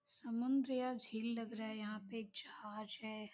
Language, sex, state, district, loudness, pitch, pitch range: Hindi, female, Uttar Pradesh, Gorakhpur, -43 LUFS, 225 Hz, 215-235 Hz